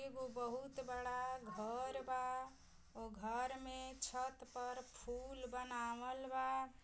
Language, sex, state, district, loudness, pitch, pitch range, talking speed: Bhojpuri, female, Uttar Pradesh, Gorakhpur, -46 LUFS, 255 Hz, 245-260 Hz, 115 wpm